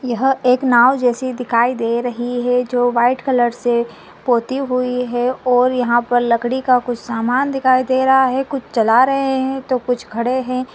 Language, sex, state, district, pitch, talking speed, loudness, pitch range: Hindi, female, Maharashtra, Nagpur, 250 Hz, 190 wpm, -17 LUFS, 240-260 Hz